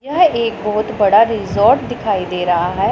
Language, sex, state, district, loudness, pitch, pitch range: Hindi, female, Punjab, Pathankot, -15 LUFS, 210 Hz, 190-235 Hz